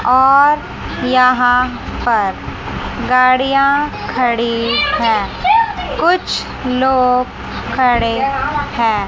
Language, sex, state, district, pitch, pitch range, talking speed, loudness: Hindi, female, Chandigarh, Chandigarh, 255 Hz, 245-275 Hz, 65 wpm, -14 LUFS